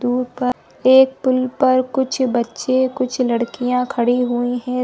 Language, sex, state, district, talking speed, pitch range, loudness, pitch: Hindi, female, Chhattisgarh, Bilaspur, 150 wpm, 245-260 Hz, -18 LUFS, 250 Hz